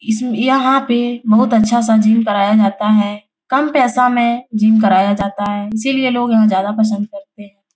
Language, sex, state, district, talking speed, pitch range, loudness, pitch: Hindi, female, Bihar, Jahanabad, 185 wpm, 205-245 Hz, -14 LUFS, 220 Hz